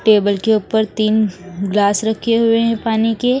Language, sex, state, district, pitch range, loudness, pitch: Hindi, female, Haryana, Rohtak, 205-225 Hz, -16 LUFS, 220 Hz